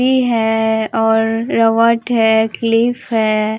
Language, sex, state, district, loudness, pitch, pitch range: Hindi, female, Bihar, Katihar, -14 LUFS, 225 Hz, 220-230 Hz